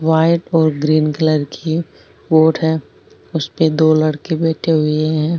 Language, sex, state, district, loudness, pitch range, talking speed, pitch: Rajasthani, female, Rajasthan, Nagaur, -16 LUFS, 155-160 Hz, 145 wpm, 160 Hz